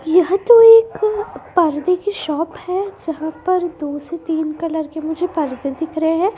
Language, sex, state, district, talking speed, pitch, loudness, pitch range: Hindi, female, Madhya Pradesh, Dhar, 180 wpm, 330 Hz, -17 LUFS, 315-370 Hz